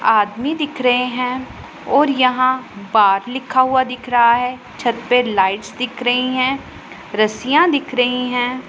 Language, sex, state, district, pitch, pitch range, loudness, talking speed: Hindi, female, Punjab, Pathankot, 250 Hz, 235-260 Hz, -17 LUFS, 150 wpm